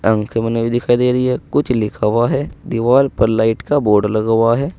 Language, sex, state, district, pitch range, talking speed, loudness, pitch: Hindi, male, Uttar Pradesh, Saharanpur, 110-125 Hz, 240 wpm, -16 LUFS, 115 Hz